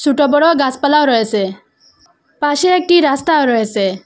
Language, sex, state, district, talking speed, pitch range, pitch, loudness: Bengali, female, Assam, Hailakandi, 135 wpm, 225-300 Hz, 285 Hz, -13 LUFS